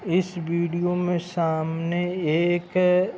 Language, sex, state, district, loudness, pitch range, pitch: Hindi, male, Uttar Pradesh, Hamirpur, -24 LUFS, 170-180 Hz, 175 Hz